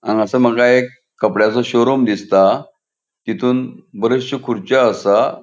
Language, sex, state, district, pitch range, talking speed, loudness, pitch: Konkani, male, Goa, North and South Goa, 110-125 Hz, 110 wpm, -15 LUFS, 120 Hz